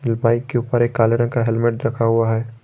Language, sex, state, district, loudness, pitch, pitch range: Hindi, male, Jharkhand, Garhwa, -19 LUFS, 115 Hz, 115-120 Hz